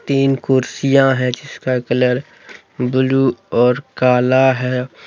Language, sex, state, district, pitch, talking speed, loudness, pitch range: Hindi, male, Jharkhand, Deoghar, 130 Hz, 105 wpm, -16 LUFS, 125-135 Hz